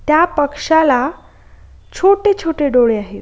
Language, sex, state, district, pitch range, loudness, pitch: Marathi, female, Maharashtra, Aurangabad, 255-340 Hz, -14 LUFS, 300 Hz